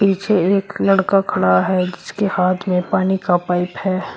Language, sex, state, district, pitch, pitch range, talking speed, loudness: Hindi, female, Uttar Pradesh, Shamli, 190 Hz, 180-195 Hz, 170 wpm, -17 LUFS